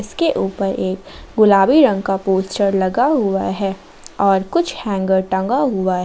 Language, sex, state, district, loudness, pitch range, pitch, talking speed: Hindi, female, Jharkhand, Ranchi, -17 LUFS, 190-210 Hz, 195 Hz, 160 wpm